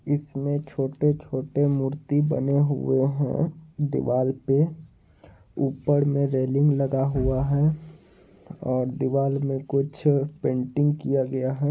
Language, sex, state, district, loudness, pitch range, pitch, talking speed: Hindi, male, Bihar, Madhepura, -24 LUFS, 135-145 Hz, 140 Hz, 115 wpm